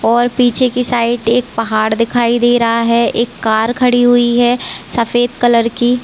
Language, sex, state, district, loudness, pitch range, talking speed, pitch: Hindi, female, Chhattisgarh, Raigarh, -13 LUFS, 230-245 Hz, 180 wpm, 240 Hz